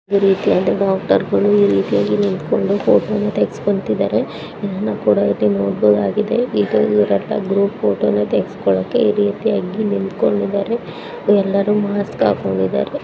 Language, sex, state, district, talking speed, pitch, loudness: Kannada, female, Karnataka, Gulbarga, 50 wpm, 185 Hz, -17 LUFS